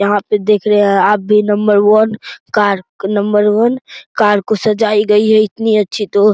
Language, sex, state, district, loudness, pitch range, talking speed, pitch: Hindi, male, Bihar, Araria, -12 LUFS, 205-215 Hz, 200 wpm, 210 Hz